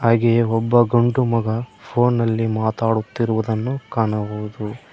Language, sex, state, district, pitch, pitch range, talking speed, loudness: Kannada, male, Karnataka, Koppal, 115 Hz, 110-120 Hz, 85 wpm, -20 LUFS